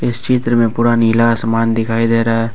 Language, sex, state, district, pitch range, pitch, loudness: Hindi, male, Jharkhand, Ranchi, 115-120 Hz, 115 Hz, -14 LUFS